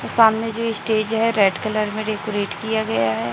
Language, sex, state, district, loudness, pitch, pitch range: Hindi, female, Chhattisgarh, Raipur, -20 LUFS, 215 Hz, 205-225 Hz